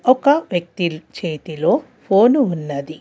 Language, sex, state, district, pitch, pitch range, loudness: Telugu, female, Telangana, Hyderabad, 175 Hz, 155-255 Hz, -18 LUFS